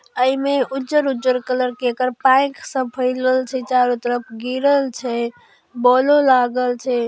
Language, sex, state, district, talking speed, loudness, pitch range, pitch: Maithili, female, Bihar, Darbhanga, 95 wpm, -18 LUFS, 245-265 Hz, 255 Hz